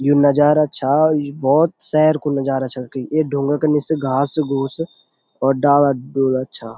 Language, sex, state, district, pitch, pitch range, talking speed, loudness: Garhwali, male, Uttarakhand, Uttarkashi, 145 Hz, 135-155 Hz, 160 wpm, -17 LUFS